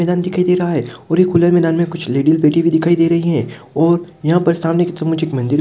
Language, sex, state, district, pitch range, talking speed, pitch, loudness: Hindi, male, Rajasthan, Nagaur, 160-175 Hz, 280 wpm, 165 Hz, -15 LUFS